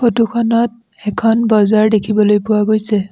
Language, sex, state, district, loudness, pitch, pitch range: Assamese, female, Assam, Sonitpur, -14 LUFS, 215 Hz, 210-230 Hz